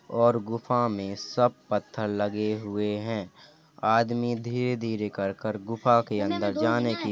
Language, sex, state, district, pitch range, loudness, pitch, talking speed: Hindi, male, Uttar Pradesh, Hamirpur, 105-120 Hz, -27 LUFS, 110 Hz, 150 wpm